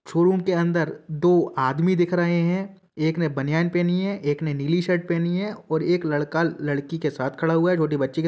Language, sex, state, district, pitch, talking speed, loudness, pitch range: Hindi, male, Uttar Pradesh, Jalaun, 165 Hz, 230 wpm, -23 LUFS, 155-175 Hz